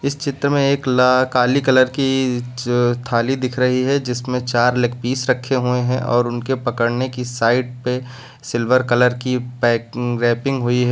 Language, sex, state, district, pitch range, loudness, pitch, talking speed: Hindi, male, Uttar Pradesh, Lucknow, 120-130 Hz, -18 LUFS, 125 Hz, 175 wpm